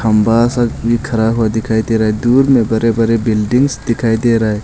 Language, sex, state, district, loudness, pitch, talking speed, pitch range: Hindi, male, Arunachal Pradesh, Longding, -13 LUFS, 115 Hz, 230 wpm, 110-120 Hz